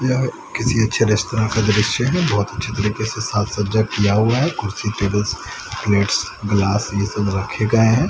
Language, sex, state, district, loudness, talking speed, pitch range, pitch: Hindi, male, Haryana, Rohtak, -19 LUFS, 180 wpm, 105-115 Hz, 110 Hz